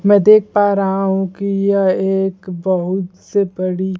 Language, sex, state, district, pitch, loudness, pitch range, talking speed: Hindi, male, Bihar, Kaimur, 195 Hz, -16 LUFS, 185-200 Hz, 165 wpm